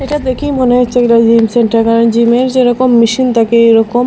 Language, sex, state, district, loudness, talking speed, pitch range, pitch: Bengali, female, Assam, Hailakandi, -10 LUFS, 190 wpm, 230-255 Hz, 240 Hz